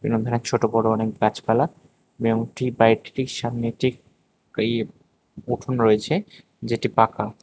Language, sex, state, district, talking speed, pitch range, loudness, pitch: Bengali, male, Tripura, West Tripura, 135 wpm, 110-120 Hz, -23 LUFS, 115 Hz